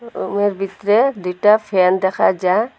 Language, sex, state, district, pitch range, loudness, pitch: Bengali, female, Assam, Hailakandi, 190-215 Hz, -17 LUFS, 200 Hz